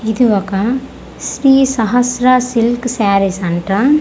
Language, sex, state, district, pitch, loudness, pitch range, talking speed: Telugu, female, Andhra Pradesh, Manyam, 240 Hz, -14 LUFS, 200-255 Hz, 105 wpm